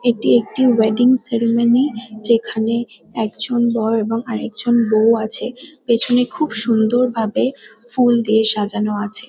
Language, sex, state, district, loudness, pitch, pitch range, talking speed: Bengali, female, West Bengal, Kolkata, -17 LUFS, 230 Hz, 220-245 Hz, 125 wpm